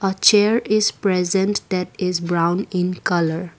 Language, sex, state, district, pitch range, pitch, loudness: English, female, Assam, Kamrup Metropolitan, 175-205 Hz, 185 Hz, -19 LUFS